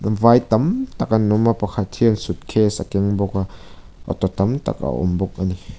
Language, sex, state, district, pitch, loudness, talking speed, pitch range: Mizo, male, Mizoram, Aizawl, 100 Hz, -19 LUFS, 220 wpm, 95-110 Hz